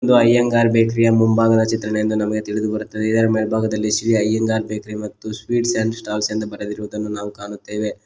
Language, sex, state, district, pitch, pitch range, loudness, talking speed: Kannada, male, Karnataka, Koppal, 110 Hz, 105-115 Hz, -19 LUFS, 170 wpm